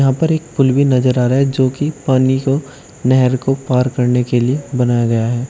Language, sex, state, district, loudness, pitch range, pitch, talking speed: Hindi, male, Uttar Pradesh, Shamli, -15 LUFS, 125-135 Hz, 130 Hz, 240 wpm